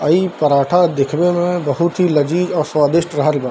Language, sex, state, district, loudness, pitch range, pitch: Hindi, male, Bihar, Darbhanga, -15 LUFS, 145-175 Hz, 165 Hz